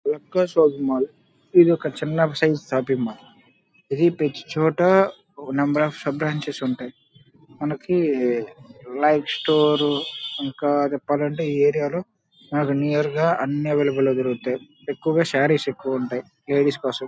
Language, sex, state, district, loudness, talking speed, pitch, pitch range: Telugu, male, Andhra Pradesh, Krishna, -22 LUFS, 135 wpm, 145 Hz, 135-155 Hz